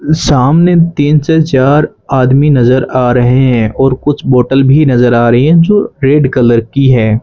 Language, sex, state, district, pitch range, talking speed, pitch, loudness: Hindi, male, Rajasthan, Bikaner, 125-150 Hz, 185 wpm, 135 Hz, -9 LUFS